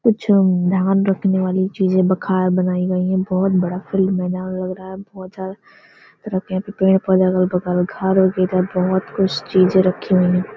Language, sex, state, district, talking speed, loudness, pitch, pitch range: Hindi, female, Bihar, Gopalganj, 115 wpm, -18 LUFS, 185 Hz, 185-190 Hz